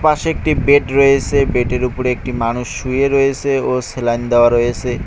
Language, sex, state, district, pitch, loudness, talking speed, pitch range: Bengali, male, West Bengal, Cooch Behar, 130 Hz, -15 LUFS, 180 wpm, 120-140 Hz